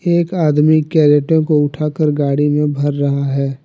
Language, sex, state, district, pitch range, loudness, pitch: Hindi, male, Jharkhand, Deoghar, 145-155 Hz, -14 LUFS, 150 Hz